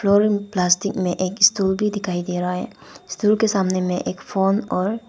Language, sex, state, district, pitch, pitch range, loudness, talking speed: Hindi, female, Arunachal Pradesh, Papum Pare, 195 Hz, 180-205 Hz, -20 LUFS, 200 wpm